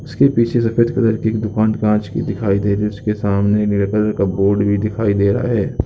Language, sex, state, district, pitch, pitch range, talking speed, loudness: Hindi, male, Uttarakhand, Uttarkashi, 105 Hz, 100-115 Hz, 245 wpm, -17 LUFS